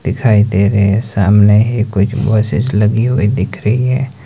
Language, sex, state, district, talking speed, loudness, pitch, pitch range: Hindi, male, Himachal Pradesh, Shimla, 185 wpm, -13 LUFS, 110 Hz, 105-125 Hz